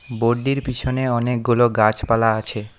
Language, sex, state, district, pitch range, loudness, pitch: Bengali, male, West Bengal, Alipurduar, 110-125 Hz, -19 LUFS, 120 Hz